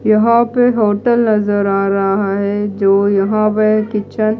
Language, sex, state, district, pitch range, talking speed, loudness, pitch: Hindi, female, Odisha, Malkangiri, 200-215 Hz, 165 wpm, -14 LUFS, 210 Hz